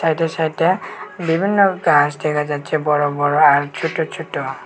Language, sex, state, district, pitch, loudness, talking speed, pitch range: Bengali, male, Tripura, West Tripura, 160 Hz, -17 LUFS, 140 wpm, 145-165 Hz